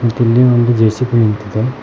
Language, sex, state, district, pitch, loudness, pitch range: Kannada, male, Karnataka, Koppal, 120 Hz, -13 LUFS, 110-120 Hz